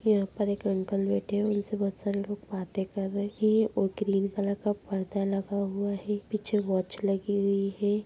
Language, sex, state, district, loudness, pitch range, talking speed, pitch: Hindi, female, Bihar, Muzaffarpur, -30 LUFS, 195-205 Hz, 215 wpm, 200 Hz